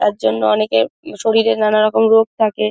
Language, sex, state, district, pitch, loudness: Bengali, female, West Bengal, Dakshin Dinajpur, 215 Hz, -15 LUFS